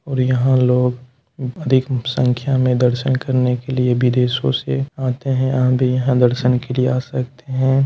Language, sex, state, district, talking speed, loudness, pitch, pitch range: Hindi, male, Bihar, Begusarai, 175 wpm, -18 LUFS, 125 Hz, 125-130 Hz